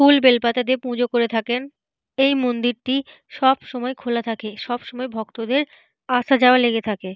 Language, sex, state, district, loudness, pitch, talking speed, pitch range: Bengali, female, Jharkhand, Jamtara, -20 LUFS, 245 Hz, 160 wpm, 235-265 Hz